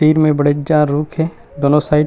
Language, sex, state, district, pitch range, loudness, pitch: Chhattisgarhi, male, Chhattisgarh, Rajnandgaon, 145-155 Hz, -15 LUFS, 150 Hz